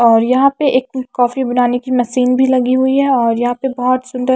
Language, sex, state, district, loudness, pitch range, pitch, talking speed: Hindi, female, Punjab, Kapurthala, -14 LUFS, 245-260 Hz, 255 Hz, 235 wpm